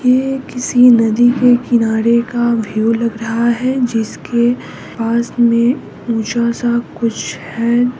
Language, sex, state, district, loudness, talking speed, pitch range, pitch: Hindi, female, Bihar, Gopalganj, -15 LUFS, 130 wpm, 230-245 Hz, 235 Hz